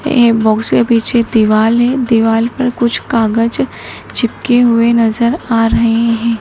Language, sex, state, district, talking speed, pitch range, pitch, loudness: Hindi, male, Madhya Pradesh, Dhar, 150 wpm, 225-240 Hz, 230 Hz, -12 LUFS